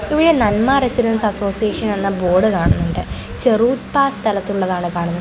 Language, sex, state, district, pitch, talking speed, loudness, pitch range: Malayalam, female, Kerala, Kozhikode, 215 Hz, 115 wpm, -17 LUFS, 195-250 Hz